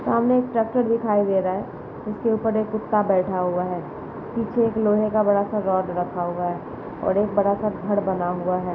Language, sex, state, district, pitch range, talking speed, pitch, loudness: Hindi, female, Uttar Pradesh, Jalaun, 185-220 Hz, 220 wpm, 205 Hz, -23 LUFS